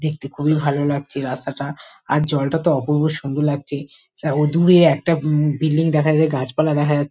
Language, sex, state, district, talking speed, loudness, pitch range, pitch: Bengali, female, West Bengal, Kolkata, 175 wpm, -19 LUFS, 140-155 Hz, 150 Hz